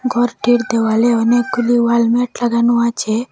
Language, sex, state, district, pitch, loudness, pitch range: Bengali, female, Assam, Hailakandi, 235 Hz, -15 LUFS, 230-245 Hz